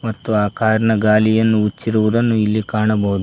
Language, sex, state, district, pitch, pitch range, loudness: Kannada, male, Karnataka, Koppal, 110 Hz, 105-110 Hz, -16 LUFS